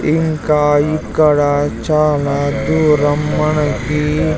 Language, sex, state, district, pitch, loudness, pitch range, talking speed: Telugu, male, Andhra Pradesh, Sri Satya Sai, 150 Hz, -15 LUFS, 145-155 Hz, 80 wpm